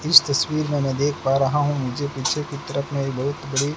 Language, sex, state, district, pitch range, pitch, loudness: Hindi, male, Rajasthan, Bikaner, 135-145 Hz, 140 Hz, -22 LUFS